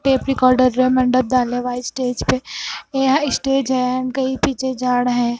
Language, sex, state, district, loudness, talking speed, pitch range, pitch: Hindi, female, Punjab, Fazilka, -18 LUFS, 175 wpm, 250-265 Hz, 255 Hz